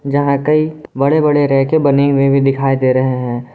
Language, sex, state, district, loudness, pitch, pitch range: Hindi, male, Jharkhand, Garhwa, -14 LUFS, 140 Hz, 135-145 Hz